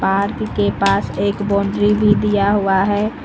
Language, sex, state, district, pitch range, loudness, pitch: Hindi, female, Uttar Pradesh, Lucknow, 190-205 Hz, -17 LUFS, 200 Hz